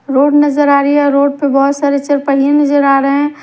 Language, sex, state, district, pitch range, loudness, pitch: Hindi, female, Punjab, Kapurthala, 280-290 Hz, -11 LUFS, 285 Hz